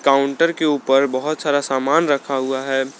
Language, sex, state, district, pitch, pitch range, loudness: Hindi, male, Jharkhand, Garhwa, 140 Hz, 135-150 Hz, -18 LUFS